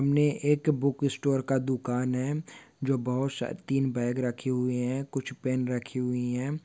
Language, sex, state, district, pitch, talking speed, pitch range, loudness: Hindi, male, Maharashtra, Dhule, 130 Hz, 180 wpm, 125-140 Hz, -29 LUFS